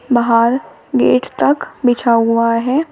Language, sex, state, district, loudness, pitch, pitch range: Hindi, female, Uttar Pradesh, Shamli, -14 LUFS, 240 Hz, 230-260 Hz